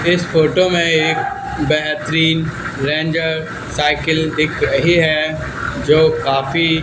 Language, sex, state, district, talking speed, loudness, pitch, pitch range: Hindi, male, Haryana, Charkhi Dadri, 105 wpm, -16 LUFS, 160 Hz, 155-165 Hz